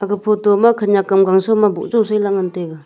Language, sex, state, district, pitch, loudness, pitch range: Wancho, female, Arunachal Pradesh, Longding, 205 Hz, -15 LUFS, 190-210 Hz